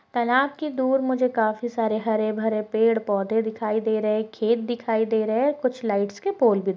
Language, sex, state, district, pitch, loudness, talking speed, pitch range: Hindi, female, Chhattisgarh, Balrampur, 225 Hz, -23 LUFS, 210 wpm, 215-245 Hz